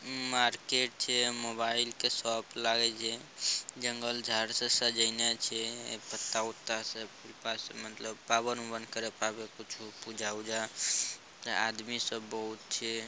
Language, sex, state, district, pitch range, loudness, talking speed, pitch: Hindi, male, Bihar, Araria, 110-120 Hz, -32 LUFS, 135 wpm, 115 Hz